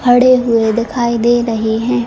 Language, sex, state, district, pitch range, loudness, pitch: Hindi, female, Chhattisgarh, Bilaspur, 230-245 Hz, -13 LUFS, 235 Hz